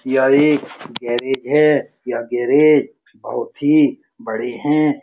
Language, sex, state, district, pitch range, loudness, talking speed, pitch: Hindi, male, Bihar, Saran, 130-150 Hz, -17 LUFS, 120 wpm, 145 Hz